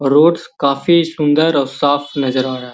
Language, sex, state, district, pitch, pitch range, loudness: Magahi, male, Bihar, Gaya, 145 Hz, 135-160 Hz, -15 LUFS